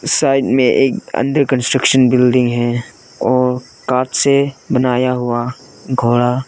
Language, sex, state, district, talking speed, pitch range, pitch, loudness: Hindi, male, Arunachal Pradesh, Lower Dibang Valley, 120 wpm, 125-135 Hz, 125 Hz, -15 LUFS